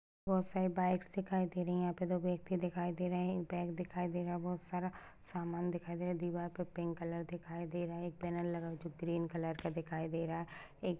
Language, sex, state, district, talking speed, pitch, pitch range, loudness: Hindi, female, Rajasthan, Nagaur, 280 wpm, 175 Hz, 170-180 Hz, -40 LUFS